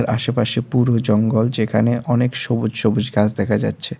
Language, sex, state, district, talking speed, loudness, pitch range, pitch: Bengali, male, Tripura, West Tripura, 150 wpm, -18 LUFS, 110-120 Hz, 115 Hz